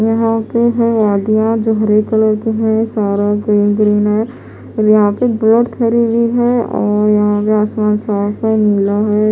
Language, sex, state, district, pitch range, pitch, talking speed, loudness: Hindi, female, Odisha, Khordha, 210-225 Hz, 215 Hz, 105 wpm, -13 LUFS